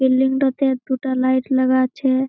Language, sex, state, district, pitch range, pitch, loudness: Bengali, female, West Bengal, Malda, 260-265 Hz, 260 Hz, -19 LUFS